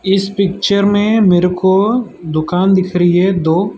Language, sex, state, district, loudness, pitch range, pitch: Hindi, male, Gujarat, Valsad, -13 LUFS, 180-200 Hz, 190 Hz